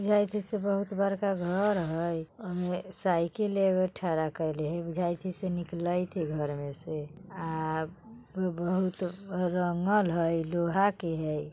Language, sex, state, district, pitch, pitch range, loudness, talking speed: Bajjika, female, Bihar, Vaishali, 180 Hz, 165-195 Hz, -31 LUFS, 145 wpm